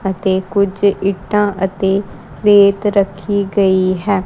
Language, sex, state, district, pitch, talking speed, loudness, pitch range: Punjabi, female, Punjab, Kapurthala, 195 Hz, 115 wpm, -15 LUFS, 190-200 Hz